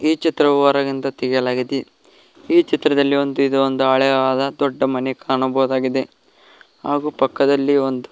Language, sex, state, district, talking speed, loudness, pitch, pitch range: Kannada, male, Karnataka, Koppal, 110 wpm, -18 LUFS, 135 Hz, 130-145 Hz